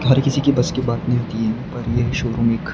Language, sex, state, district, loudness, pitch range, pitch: Hindi, male, Maharashtra, Gondia, -20 LUFS, 115-135 Hz, 120 Hz